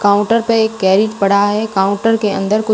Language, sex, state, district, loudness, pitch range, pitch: Hindi, female, Rajasthan, Bikaner, -14 LUFS, 200-220 Hz, 210 Hz